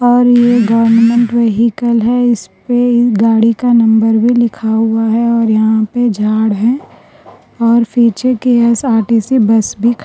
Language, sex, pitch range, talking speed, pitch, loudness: Urdu, female, 225-240 Hz, 155 wpm, 230 Hz, -11 LUFS